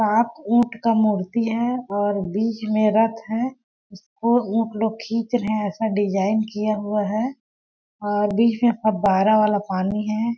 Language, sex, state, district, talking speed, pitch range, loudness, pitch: Hindi, female, Chhattisgarh, Balrampur, 155 wpm, 205-230 Hz, -21 LUFS, 220 Hz